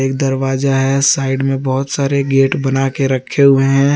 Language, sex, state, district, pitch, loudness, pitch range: Hindi, male, Jharkhand, Garhwa, 135 Hz, -14 LUFS, 135-140 Hz